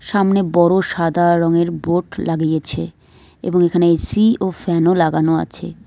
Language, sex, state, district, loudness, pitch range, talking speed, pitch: Bengali, female, West Bengal, Cooch Behar, -16 LUFS, 165-180 Hz, 135 wpm, 170 Hz